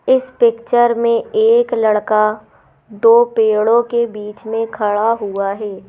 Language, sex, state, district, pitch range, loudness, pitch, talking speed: Hindi, female, Madhya Pradesh, Bhopal, 215-235 Hz, -15 LUFS, 225 Hz, 130 wpm